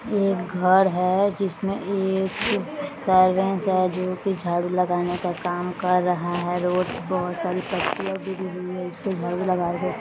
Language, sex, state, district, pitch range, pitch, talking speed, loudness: Hindi, female, Bihar, East Champaran, 180-195 Hz, 185 Hz, 180 wpm, -24 LUFS